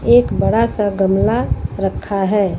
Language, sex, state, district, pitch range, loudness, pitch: Hindi, female, Uttar Pradesh, Lucknow, 195-225 Hz, -16 LUFS, 205 Hz